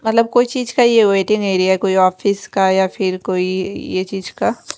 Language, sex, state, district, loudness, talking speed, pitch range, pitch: Hindi, female, Chandigarh, Chandigarh, -16 LUFS, 225 wpm, 190-230 Hz, 195 Hz